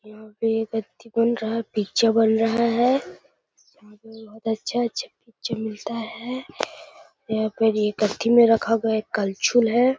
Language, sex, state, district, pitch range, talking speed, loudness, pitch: Hindi, male, Bihar, Gaya, 220-235 Hz, 140 wpm, -23 LUFS, 225 Hz